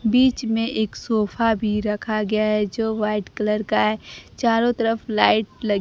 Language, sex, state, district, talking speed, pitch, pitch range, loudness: Hindi, female, Bihar, Kaimur, 175 wpm, 215 Hz, 210-225 Hz, -21 LUFS